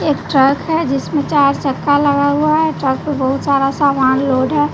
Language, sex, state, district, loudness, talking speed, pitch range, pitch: Hindi, female, Bihar, West Champaran, -15 LUFS, 205 wpm, 270-295 Hz, 280 Hz